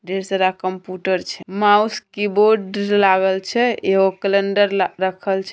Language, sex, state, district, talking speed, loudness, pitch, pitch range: Angika, female, Bihar, Begusarai, 140 wpm, -18 LUFS, 195 Hz, 190-205 Hz